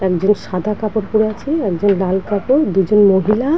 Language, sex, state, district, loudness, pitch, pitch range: Bengali, female, West Bengal, Dakshin Dinajpur, -16 LUFS, 205 Hz, 190-215 Hz